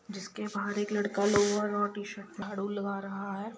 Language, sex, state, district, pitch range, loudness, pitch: Hindi, female, Bihar, Gopalganj, 200-205 Hz, -32 LUFS, 205 Hz